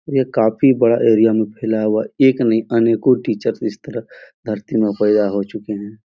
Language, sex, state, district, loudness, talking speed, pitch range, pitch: Hindi, male, Bihar, Jahanabad, -17 LUFS, 210 wpm, 110-120 Hz, 110 Hz